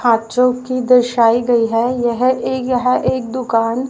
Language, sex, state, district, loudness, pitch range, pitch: Hindi, female, Haryana, Rohtak, -15 LUFS, 235-255 Hz, 245 Hz